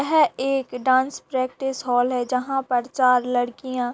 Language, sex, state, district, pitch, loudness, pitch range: Hindi, female, Bihar, Kishanganj, 255 Hz, -22 LUFS, 245-270 Hz